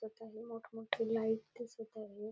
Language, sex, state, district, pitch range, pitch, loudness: Marathi, female, Maharashtra, Nagpur, 220-225 Hz, 225 Hz, -41 LUFS